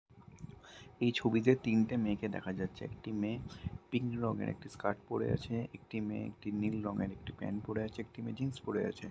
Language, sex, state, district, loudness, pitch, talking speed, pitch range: Bengali, male, West Bengal, Malda, -37 LUFS, 110 Hz, 185 wpm, 105-120 Hz